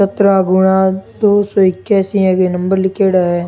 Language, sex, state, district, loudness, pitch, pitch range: Rajasthani, male, Rajasthan, Churu, -13 LUFS, 190 Hz, 185-200 Hz